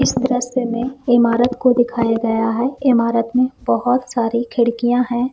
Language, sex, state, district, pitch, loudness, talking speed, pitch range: Hindi, female, Jharkhand, Sahebganj, 245 Hz, -17 LUFS, 155 wpm, 235-250 Hz